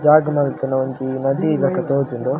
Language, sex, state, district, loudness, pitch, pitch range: Tulu, male, Karnataka, Dakshina Kannada, -19 LUFS, 140 Hz, 130-150 Hz